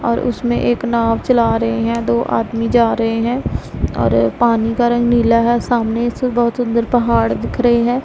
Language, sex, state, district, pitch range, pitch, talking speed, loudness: Hindi, female, Punjab, Pathankot, 225-240 Hz, 235 Hz, 195 wpm, -16 LUFS